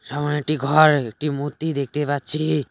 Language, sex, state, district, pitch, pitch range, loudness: Bengali, male, West Bengal, Cooch Behar, 145 Hz, 145-155 Hz, -21 LUFS